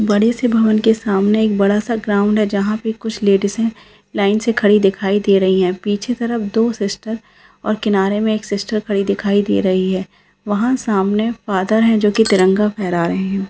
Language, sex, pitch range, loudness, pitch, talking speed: Maithili, female, 200-220 Hz, -16 LUFS, 210 Hz, 190 wpm